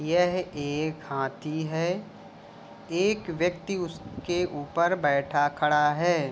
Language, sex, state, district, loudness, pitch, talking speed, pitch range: Hindi, male, Uttar Pradesh, Jalaun, -27 LUFS, 160 Hz, 105 wpm, 145-175 Hz